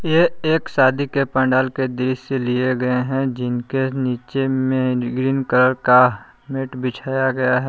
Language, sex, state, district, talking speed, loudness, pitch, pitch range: Hindi, male, Jharkhand, Palamu, 165 wpm, -19 LUFS, 130 Hz, 125-135 Hz